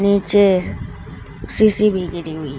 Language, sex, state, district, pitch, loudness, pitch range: Hindi, female, Uttar Pradesh, Shamli, 195 Hz, -14 LUFS, 170-205 Hz